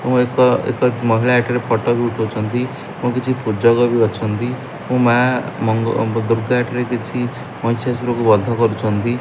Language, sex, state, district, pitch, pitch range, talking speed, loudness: Odia, male, Odisha, Malkangiri, 120 Hz, 115-125 Hz, 150 wpm, -17 LUFS